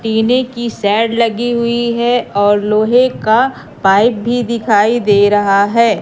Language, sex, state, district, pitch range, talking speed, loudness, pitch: Hindi, female, Madhya Pradesh, Katni, 205-240 Hz, 150 wpm, -13 LUFS, 230 Hz